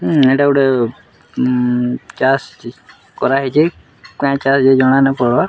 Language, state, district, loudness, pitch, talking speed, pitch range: Sambalpuri, Odisha, Sambalpur, -14 LUFS, 135 Hz, 140 wpm, 125-140 Hz